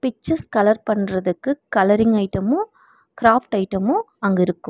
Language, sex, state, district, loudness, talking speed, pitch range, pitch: Tamil, female, Tamil Nadu, Nilgiris, -19 LUFS, 115 wpm, 195-270 Hz, 215 Hz